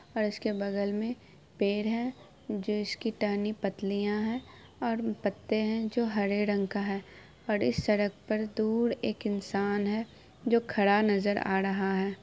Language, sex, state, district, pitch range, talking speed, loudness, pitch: Hindi, female, Bihar, Araria, 200-220 Hz, 155 wpm, -30 LUFS, 210 Hz